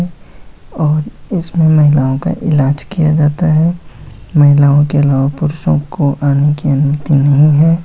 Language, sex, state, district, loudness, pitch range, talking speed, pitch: Hindi, female, Bihar, Muzaffarpur, -12 LUFS, 140-160 Hz, 140 wpm, 150 Hz